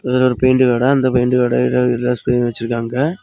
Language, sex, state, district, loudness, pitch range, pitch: Tamil, male, Tamil Nadu, Kanyakumari, -16 LUFS, 120-130 Hz, 125 Hz